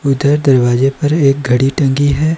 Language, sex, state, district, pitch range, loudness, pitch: Hindi, male, Himachal Pradesh, Shimla, 135-145 Hz, -12 LUFS, 140 Hz